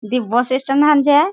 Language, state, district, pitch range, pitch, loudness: Surjapuri, Bihar, Kishanganj, 250-290 Hz, 270 Hz, -15 LUFS